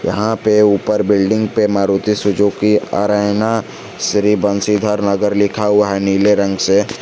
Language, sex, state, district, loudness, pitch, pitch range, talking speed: Hindi, male, Jharkhand, Garhwa, -15 LUFS, 105 Hz, 100-105 Hz, 145 wpm